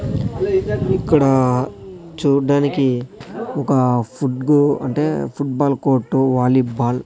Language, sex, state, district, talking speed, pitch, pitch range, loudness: Telugu, male, Andhra Pradesh, Sri Satya Sai, 95 wpm, 135 Hz, 130-145 Hz, -18 LUFS